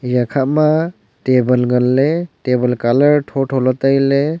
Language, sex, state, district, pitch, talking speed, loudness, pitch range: Wancho, male, Arunachal Pradesh, Longding, 135 Hz, 125 wpm, -15 LUFS, 125-145 Hz